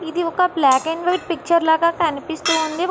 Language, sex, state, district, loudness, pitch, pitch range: Telugu, female, Andhra Pradesh, Guntur, -18 LUFS, 330 Hz, 320-345 Hz